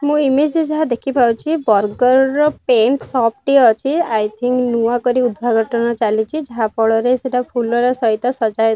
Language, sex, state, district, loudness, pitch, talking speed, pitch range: Odia, female, Odisha, Nuapada, -16 LUFS, 245 Hz, 145 wpm, 225-270 Hz